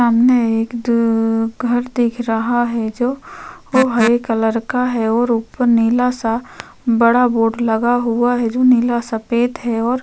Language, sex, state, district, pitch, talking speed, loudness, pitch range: Hindi, female, Uttar Pradesh, Varanasi, 235 Hz, 175 wpm, -16 LUFS, 225-245 Hz